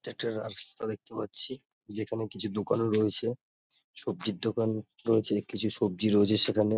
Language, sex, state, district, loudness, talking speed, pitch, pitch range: Bengali, male, West Bengal, North 24 Parganas, -29 LUFS, 140 wpm, 110 Hz, 105-115 Hz